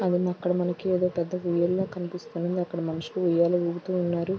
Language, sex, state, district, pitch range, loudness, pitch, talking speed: Telugu, female, Andhra Pradesh, Guntur, 170-180 Hz, -27 LUFS, 180 Hz, 150 wpm